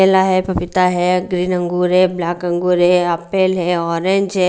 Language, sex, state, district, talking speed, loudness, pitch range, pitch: Hindi, female, Bihar, Patna, 185 wpm, -16 LUFS, 175-185 Hz, 180 Hz